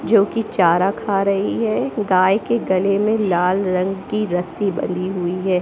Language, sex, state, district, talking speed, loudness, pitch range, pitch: Hindi, female, Bihar, Gopalganj, 180 wpm, -19 LUFS, 185-215 Hz, 195 Hz